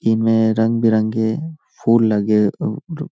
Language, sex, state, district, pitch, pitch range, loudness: Hindi, male, Uttar Pradesh, Hamirpur, 110 Hz, 110-115 Hz, -17 LUFS